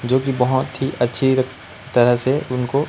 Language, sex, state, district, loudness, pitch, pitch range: Hindi, male, Chhattisgarh, Raipur, -19 LUFS, 130 Hz, 125-135 Hz